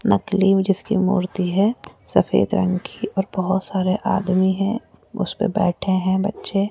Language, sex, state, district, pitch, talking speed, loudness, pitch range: Hindi, female, Rajasthan, Jaipur, 190 Hz, 150 wpm, -20 LUFS, 185-200 Hz